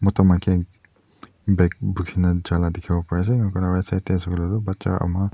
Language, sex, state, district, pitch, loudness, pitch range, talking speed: Nagamese, male, Nagaland, Dimapur, 95 Hz, -22 LUFS, 90-100 Hz, 235 wpm